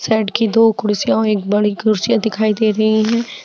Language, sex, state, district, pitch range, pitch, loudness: Hindi, female, Chhattisgarh, Jashpur, 210-225 Hz, 220 Hz, -15 LUFS